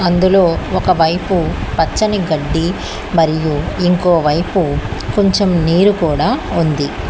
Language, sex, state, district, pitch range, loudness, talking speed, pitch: Telugu, female, Telangana, Hyderabad, 155-185 Hz, -15 LUFS, 85 wpm, 170 Hz